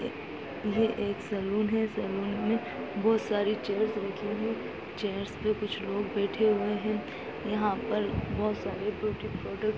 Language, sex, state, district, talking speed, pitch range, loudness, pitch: Hindi, female, Uttarakhand, Tehri Garhwal, 155 wpm, 205-215 Hz, -31 LUFS, 210 Hz